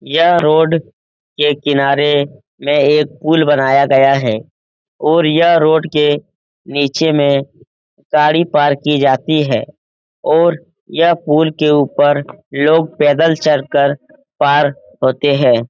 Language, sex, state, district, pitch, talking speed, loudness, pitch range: Hindi, male, Uttar Pradesh, Etah, 145 Hz, 120 wpm, -13 LUFS, 140-160 Hz